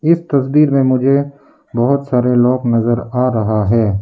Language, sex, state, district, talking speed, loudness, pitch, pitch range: Hindi, male, Arunachal Pradesh, Lower Dibang Valley, 165 wpm, -14 LUFS, 125 Hz, 120-140 Hz